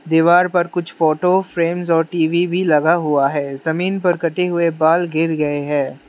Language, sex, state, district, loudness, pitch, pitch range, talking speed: Hindi, male, Manipur, Imphal West, -17 LUFS, 165 Hz, 155-175 Hz, 185 wpm